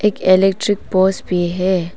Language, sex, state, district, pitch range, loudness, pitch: Hindi, female, Arunachal Pradesh, Papum Pare, 180-195 Hz, -16 LUFS, 185 Hz